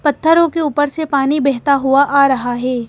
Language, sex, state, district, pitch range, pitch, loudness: Hindi, female, Madhya Pradesh, Bhopal, 270-295 Hz, 280 Hz, -14 LUFS